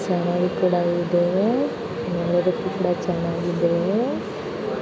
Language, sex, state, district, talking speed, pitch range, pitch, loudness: Kannada, female, Karnataka, Belgaum, 60 wpm, 175-185 Hz, 175 Hz, -23 LUFS